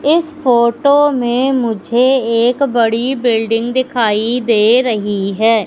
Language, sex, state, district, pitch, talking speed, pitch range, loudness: Hindi, female, Madhya Pradesh, Katni, 240 Hz, 115 wpm, 225-260 Hz, -13 LUFS